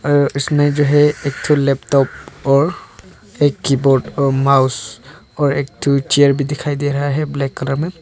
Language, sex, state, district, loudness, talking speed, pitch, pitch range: Hindi, male, Arunachal Pradesh, Papum Pare, -16 LUFS, 180 wpm, 140 Hz, 135-145 Hz